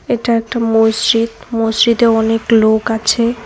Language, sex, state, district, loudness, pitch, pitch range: Bengali, female, West Bengal, Cooch Behar, -13 LUFS, 225 Hz, 225-235 Hz